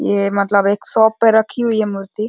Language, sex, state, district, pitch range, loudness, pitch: Hindi, male, Uttar Pradesh, Deoria, 200-220 Hz, -15 LUFS, 215 Hz